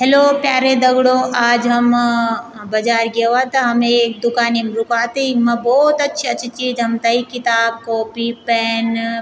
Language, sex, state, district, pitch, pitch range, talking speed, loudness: Garhwali, female, Uttarakhand, Tehri Garhwal, 235 Hz, 230-255 Hz, 155 wpm, -15 LUFS